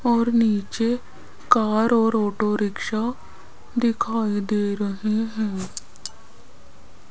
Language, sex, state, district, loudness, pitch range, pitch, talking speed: Hindi, female, Rajasthan, Jaipur, -23 LUFS, 205-230 Hz, 215 Hz, 85 wpm